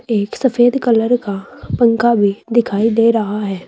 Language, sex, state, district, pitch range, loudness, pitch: Hindi, female, Uttar Pradesh, Saharanpur, 205-235 Hz, -15 LUFS, 225 Hz